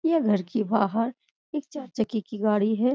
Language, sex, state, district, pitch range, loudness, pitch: Hindi, female, Bihar, Supaul, 215-280 Hz, -26 LUFS, 225 Hz